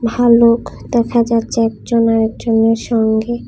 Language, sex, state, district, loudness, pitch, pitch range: Bengali, female, Tripura, West Tripura, -14 LUFS, 230 Hz, 225-235 Hz